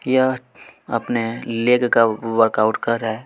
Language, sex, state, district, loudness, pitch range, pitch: Hindi, male, Chhattisgarh, Kabirdham, -19 LUFS, 115-125 Hz, 115 Hz